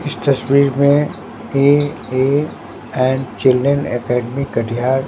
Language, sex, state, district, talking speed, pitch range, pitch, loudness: Hindi, male, Bihar, Katihar, 95 wpm, 130-140 Hz, 135 Hz, -16 LUFS